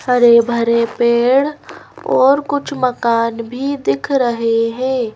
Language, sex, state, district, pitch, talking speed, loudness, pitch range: Hindi, female, Madhya Pradesh, Bhopal, 240 Hz, 115 wpm, -15 LUFS, 230-265 Hz